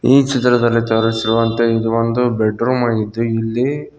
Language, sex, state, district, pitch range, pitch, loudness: Kannada, male, Karnataka, Koppal, 115-125 Hz, 115 Hz, -16 LUFS